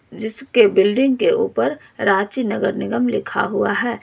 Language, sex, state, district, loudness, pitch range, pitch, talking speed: Hindi, female, Jharkhand, Ranchi, -18 LUFS, 205-265 Hz, 230 Hz, 150 wpm